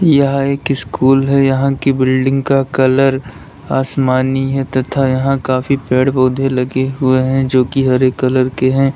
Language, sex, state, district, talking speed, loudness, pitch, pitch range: Hindi, male, Uttar Pradesh, Lalitpur, 165 wpm, -14 LUFS, 135 Hz, 130-135 Hz